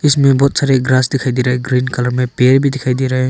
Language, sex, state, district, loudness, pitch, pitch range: Hindi, male, Arunachal Pradesh, Longding, -14 LUFS, 130 Hz, 125-135 Hz